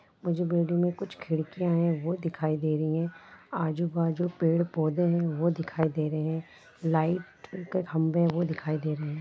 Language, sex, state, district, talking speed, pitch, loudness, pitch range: Hindi, female, Jharkhand, Jamtara, 200 wpm, 165 Hz, -29 LUFS, 160-175 Hz